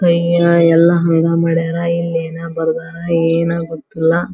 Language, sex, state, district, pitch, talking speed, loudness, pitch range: Kannada, female, Karnataka, Belgaum, 165 Hz, 140 wpm, -15 LUFS, 165-170 Hz